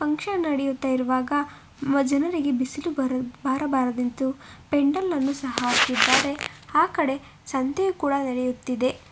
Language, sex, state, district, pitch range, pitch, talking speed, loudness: Kannada, female, Karnataka, Bangalore, 255-295 Hz, 275 Hz, 105 wpm, -24 LUFS